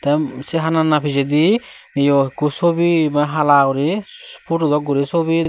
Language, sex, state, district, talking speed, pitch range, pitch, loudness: Chakma, male, Tripura, Unakoti, 210 wpm, 140-165 Hz, 150 Hz, -17 LUFS